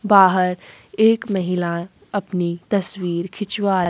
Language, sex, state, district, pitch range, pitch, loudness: Hindi, female, Chhattisgarh, Sukma, 175-205 Hz, 185 Hz, -20 LUFS